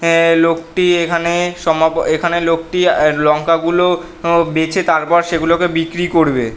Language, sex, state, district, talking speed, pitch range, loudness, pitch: Bengali, male, West Bengal, North 24 Parganas, 155 wpm, 165-170 Hz, -14 LUFS, 165 Hz